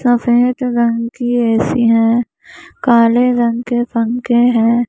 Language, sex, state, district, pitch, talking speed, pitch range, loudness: Hindi, male, Maharashtra, Mumbai Suburban, 240 Hz, 125 wpm, 230-245 Hz, -14 LUFS